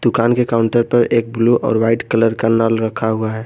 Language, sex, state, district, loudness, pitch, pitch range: Hindi, male, Jharkhand, Garhwa, -16 LUFS, 115 Hz, 110-120 Hz